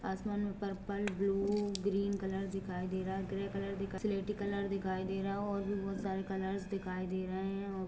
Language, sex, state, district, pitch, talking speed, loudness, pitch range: Hindi, female, Jharkhand, Sahebganj, 195 Hz, 205 wpm, -37 LUFS, 190-200 Hz